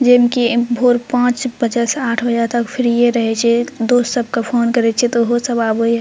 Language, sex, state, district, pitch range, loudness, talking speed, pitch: Maithili, female, Bihar, Purnia, 235-245 Hz, -15 LUFS, 190 wpm, 240 Hz